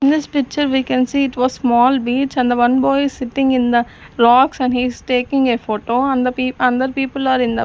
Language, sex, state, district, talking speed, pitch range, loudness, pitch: English, female, Chandigarh, Chandigarh, 260 wpm, 245-270 Hz, -16 LUFS, 255 Hz